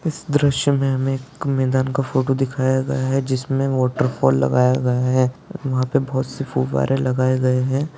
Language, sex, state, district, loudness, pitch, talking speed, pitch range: Hindi, male, Rajasthan, Churu, -20 LUFS, 130 Hz, 180 wpm, 130-135 Hz